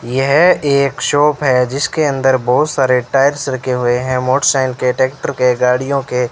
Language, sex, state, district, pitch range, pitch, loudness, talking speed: Hindi, male, Rajasthan, Bikaner, 125-140 Hz, 130 Hz, -14 LUFS, 190 wpm